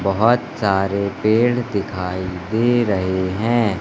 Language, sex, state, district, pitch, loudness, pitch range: Hindi, male, Madhya Pradesh, Katni, 100 Hz, -19 LUFS, 95-115 Hz